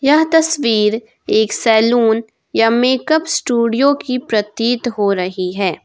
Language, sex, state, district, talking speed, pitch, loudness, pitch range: Hindi, female, Jharkhand, Ranchi, 125 wpm, 235 Hz, -15 LUFS, 215-260 Hz